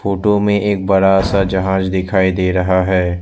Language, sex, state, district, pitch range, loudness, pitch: Hindi, male, Assam, Sonitpur, 95-100 Hz, -15 LUFS, 95 Hz